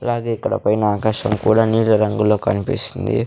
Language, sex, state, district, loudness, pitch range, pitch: Telugu, male, Andhra Pradesh, Sri Satya Sai, -18 LUFS, 105-115 Hz, 110 Hz